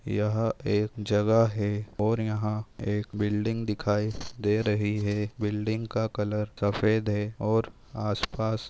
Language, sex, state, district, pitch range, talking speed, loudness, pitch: Hindi, male, Maharashtra, Nagpur, 105-110 Hz, 140 wpm, -28 LUFS, 105 Hz